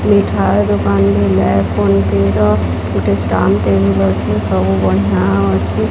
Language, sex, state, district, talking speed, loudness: Odia, female, Odisha, Sambalpur, 140 wpm, -13 LUFS